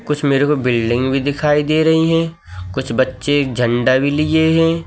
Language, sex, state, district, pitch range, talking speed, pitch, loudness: Hindi, male, Madhya Pradesh, Katni, 130-155 Hz, 185 wpm, 145 Hz, -16 LUFS